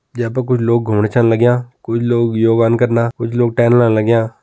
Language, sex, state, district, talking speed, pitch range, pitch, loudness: Kumaoni, male, Uttarakhand, Tehri Garhwal, 205 wpm, 115-120 Hz, 115 Hz, -14 LUFS